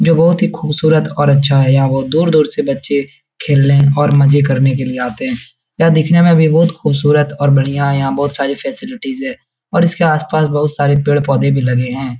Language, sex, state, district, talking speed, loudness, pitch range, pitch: Hindi, male, Bihar, Jahanabad, 210 wpm, -13 LUFS, 140-165 Hz, 145 Hz